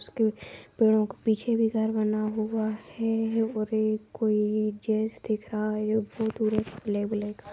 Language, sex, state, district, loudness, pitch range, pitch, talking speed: Angika, female, Bihar, Supaul, -28 LUFS, 215-220 Hz, 215 Hz, 135 wpm